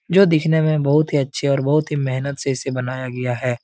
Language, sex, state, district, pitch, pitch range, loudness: Hindi, male, Uttar Pradesh, Etah, 140 Hz, 130-155 Hz, -19 LUFS